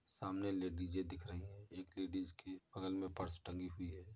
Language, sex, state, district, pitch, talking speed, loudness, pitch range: Hindi, male, Uttar Pradesh, Muzaffarnagar, 95 Hz, 200 wpm, -46 LUFS, 90-95 Hz